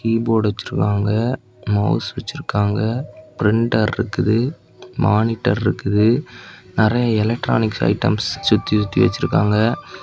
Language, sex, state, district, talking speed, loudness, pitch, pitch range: Tamil, male, Tamil Nadu, Kanyakumari, 85 wpm, -19 LUFS, 110 Hz, 105-120 Hz